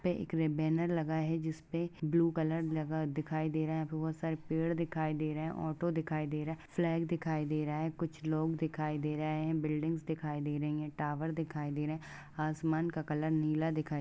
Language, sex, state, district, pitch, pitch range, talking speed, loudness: Hindi, female, Uttar Pradesh, Jyotiba Phule Nagar, 155 Hz, 155-160 Hz, 225 wpm, -35 LUFS